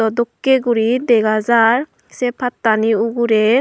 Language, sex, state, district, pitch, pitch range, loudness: Chakma, female, Tripura, Unakoti, 235 Hz, 225-245 Hz, -16 LUFS